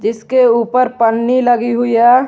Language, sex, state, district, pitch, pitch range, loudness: Hindi, male, Jharkhand, Garhwa, 240 Hz, 230-250 Hz, -13 LUFS